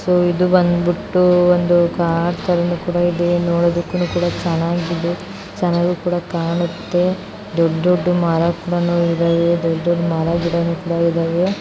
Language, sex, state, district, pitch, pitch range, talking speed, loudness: Kannada, female, Karnataka, Bellary, 175 Hz, 170-175 Hz, 90 wpm, -17 LUFS